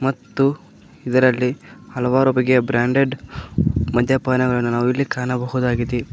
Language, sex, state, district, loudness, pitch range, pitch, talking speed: Kannada, male, Karnataka, Koppal, -19 LUFS, 125-135 Hz, 125 Hz, 80 wpm